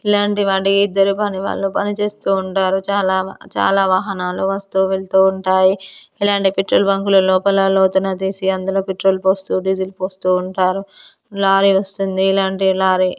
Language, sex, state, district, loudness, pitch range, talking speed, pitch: Telugu, female, Telangana, Karimnagar, -17 LUFS, 190-195 Hz, 125 wpm, 195 Hz